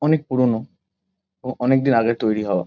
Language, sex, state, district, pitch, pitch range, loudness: Bengali, male, West Bengal, Kolkata, 125 Hz, 110-135 Hz, -20 LUFS